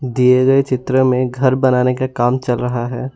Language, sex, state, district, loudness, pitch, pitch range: Hindi, male, Assam, Sonitpur, -15 LUFS, 130 Hz, 125-130 Hz